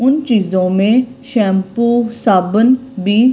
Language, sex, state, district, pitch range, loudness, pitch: Hindi, female, Delhi, New Delhi, 195-250 Hz, -14 LUFS, 225 Hz